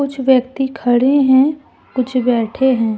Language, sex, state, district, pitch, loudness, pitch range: Hindi, female, Jharkhand, Deoghar, 260 Hz, -15 LUFS, 245-270 Hz